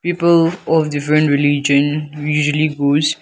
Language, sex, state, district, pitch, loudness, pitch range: English, male, Nagaland, Kohima, 150 Hz, -15 LUFS, 145-160 Hz